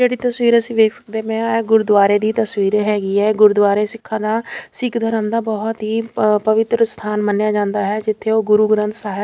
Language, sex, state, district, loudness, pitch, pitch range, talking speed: Punjabi, female, Chandigarh, Chandigarh, -17 LUFS, 215 Hz, 210-225 Hz, 210 wpm